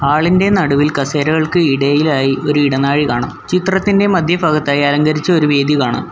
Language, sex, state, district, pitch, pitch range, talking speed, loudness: Malayalam, male, Kerala, Kollam, 150 Hz, 140-170 Hz, 135 wpm, -14 LUFS